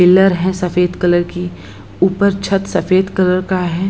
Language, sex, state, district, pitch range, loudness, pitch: Hindi, female, Bihar, Lakhisarai, 180-190 Hz, -15 LUFS, 185 Hz